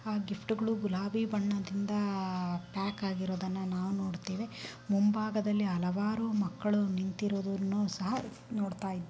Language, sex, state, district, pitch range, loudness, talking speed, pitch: Kannada, female, Karnataka, Bijapur, 190-210 Hz, -34 LUFS, 100 wpm, 200 Hz